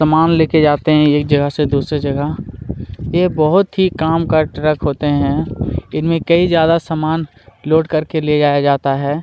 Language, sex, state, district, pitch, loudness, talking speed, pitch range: Hindi, male, Chhattisgarh, Kabirdham, 155 Hz, -15 LUFS, 190 wpm, 145-160 Hz